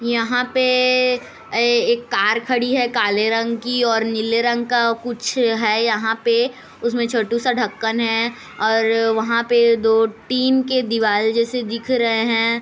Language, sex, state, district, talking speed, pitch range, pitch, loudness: Hindi, female, Chhattisgarh, Kabirdham, 160 wpm, 225-245 Hz, 235 Hz, -18 LUFS